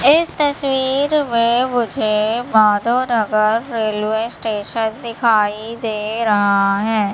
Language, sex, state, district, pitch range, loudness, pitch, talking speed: Hindi, male, Madhya Pradesh, Katni, 215-245 Hz, -17 LUFS, 225 Hz, 100 wpm